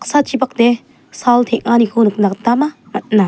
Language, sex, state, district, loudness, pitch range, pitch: Garo, female, Meghalaya, South Garo Hills, -15 LUFS, 220-260 Hz, 235 Hz